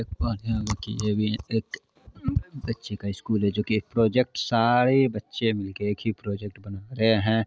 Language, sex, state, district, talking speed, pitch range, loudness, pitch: Hindi, male, Bihar, Araria, 150 wpm, 105-115 Hz, -26 LUFS, 110 Hz